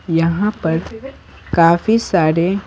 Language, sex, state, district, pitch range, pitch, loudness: Hindi, male, Bihar, Patna, 165-205 Hz, 175 Hz, -16 LUFS